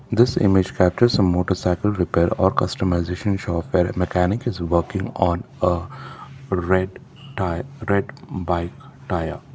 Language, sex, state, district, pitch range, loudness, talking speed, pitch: English, male, Karnataka, Bangalore, 90-115 Hz, -21 LUFS, 130 wpm, 95 Hz